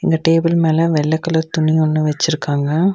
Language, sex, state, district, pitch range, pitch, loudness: Tamil, female, Tamil Nadu, Nilgiris, 155-165 Hz, 160 Hz, -16 LUFS